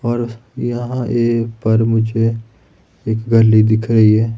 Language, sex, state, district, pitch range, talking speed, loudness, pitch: Hindi, male, Himachal Pradesh, Shimla, 110-120 Hz, 135 wpm, -15 LUFS, 115 Hz